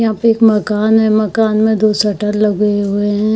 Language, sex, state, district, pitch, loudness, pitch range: Hindi, female, Bihar, Saharsa, 215 Hz, -13 LUFS, 210-220 Hz